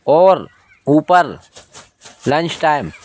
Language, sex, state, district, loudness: Hindi, male, Madhya Pradesh, Bhopal, -15 LUFS